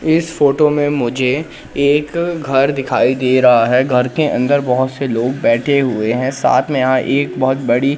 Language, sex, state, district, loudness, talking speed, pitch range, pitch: Hindi, male, Madhya Pradesh, Katni, -15 LUFS, 190 wpm, 125-145 Hz, 135 Hz